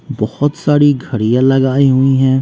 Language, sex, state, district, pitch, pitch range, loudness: Hindi, female, Bihar, West Champaran, 135 Hz, 130-145 Hz, -13 LUFS